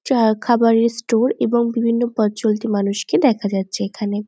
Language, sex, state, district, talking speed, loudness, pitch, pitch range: Bengali, female, West Bengal, Jhargram, 170 wpm, -18 LUFS, 225 Hz, 205-235 Hz